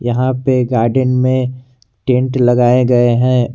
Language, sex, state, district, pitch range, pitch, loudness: Hindi, male, Jharkhand, Garhwa, 120-130 Hz, 125 Hz, -13 LUFS